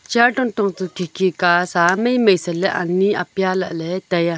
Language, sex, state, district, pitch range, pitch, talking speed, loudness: Wancho, female, Arunachal Pradesh, Longding, 175-200 Hz, 185 Hz, 235 wpm, -18 LUFS